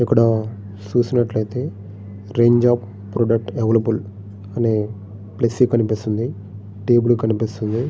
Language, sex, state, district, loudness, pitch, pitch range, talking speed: Telugu, male, Andhra Pradesh, Srikakulam, -19 LUFS, 110 Hz, 100-120 Hz, 85 wpm